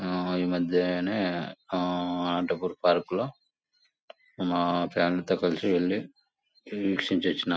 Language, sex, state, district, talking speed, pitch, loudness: Telugu, male, Andhra Pradesh, Anantapur, 105 wpm, 90 Hz, -28 LUFS